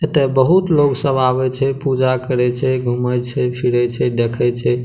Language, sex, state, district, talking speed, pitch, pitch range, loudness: Maithili, male, Bihar, Madhepura, 185 wpm, 130 Hz, 125-135 Hz, -16 LUFS